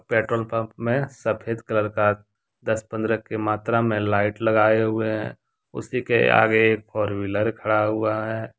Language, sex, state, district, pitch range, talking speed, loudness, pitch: Hindi, male, Jharkhand, Deoghar, 105-115 Hz, 160 wpm, -22 LUFS, 110 Hz